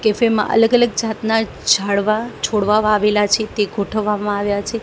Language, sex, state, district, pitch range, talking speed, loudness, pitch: Gujarati, female, Gujarat, Gandhinagar, 205-225 Hz, 160 wpm, -17 LUFS, 215 Hz